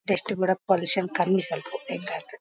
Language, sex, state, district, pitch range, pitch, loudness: Kannada, female, Karnataka, Bellary, 180-190 Hz, 185 Hz, -24 LUFS